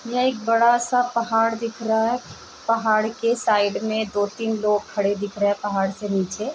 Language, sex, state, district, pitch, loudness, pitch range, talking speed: Hindi, female, Bihar, Gopalganj, 220 Hz, -22 LUFS, 205-230 Hz, 220 wpm